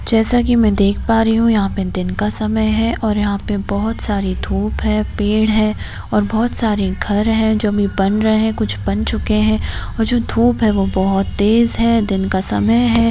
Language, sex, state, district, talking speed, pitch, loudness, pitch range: Hindi, female, Rajasthan, Nagaur, 220 wpm, 210 Hz, -16 LUFS, 195-225 Hz